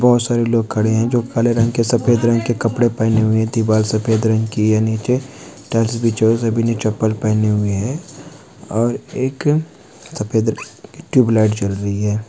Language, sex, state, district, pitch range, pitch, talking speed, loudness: Hindi, male, Uttar Pradesh, Gorakhpur, 110-120 Hz, 115 Hz, 160 wpm, -17 LUFS